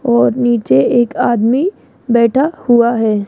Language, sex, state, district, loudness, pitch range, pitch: Hindi, female, Rajasthan, Jaipur, -13 LUFS, 230-250 Hz, 240 Hz